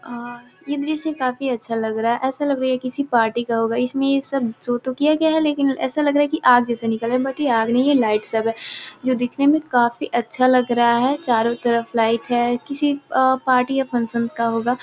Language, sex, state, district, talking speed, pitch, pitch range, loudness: Hindi, female, Bihar, Gopalganj, 250 wpm, 250 Hz, 235-275 Hz, -20 LUFS